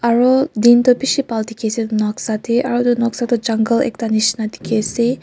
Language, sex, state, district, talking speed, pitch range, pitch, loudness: Nagamese, female, Nagaland, Kohima, 205 wpm, 220-245 Hz, 235 Hz, -16 LUFS